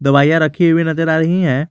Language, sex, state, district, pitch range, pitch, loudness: Hindi, male, Jharkhand, Garhwa, 150-165 Hz, 160 Hz, -14 LUFS